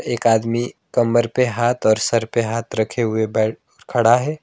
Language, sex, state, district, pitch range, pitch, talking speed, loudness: Hindi, male, West Bengal, Alipurduar, 110-120 Hz, 115 Hz, 190 wpm, -19 LUFS